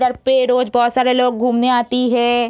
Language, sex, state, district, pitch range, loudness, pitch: Hindi, female, Bihar, Begusarai, 240-255 Hz, -15 LUFS, 250 Hz